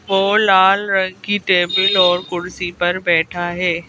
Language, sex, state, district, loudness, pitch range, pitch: Hindi, female, Madhya Pradesh, Bhopal, -16 LUFS, 175-195 Hz, 185 Hz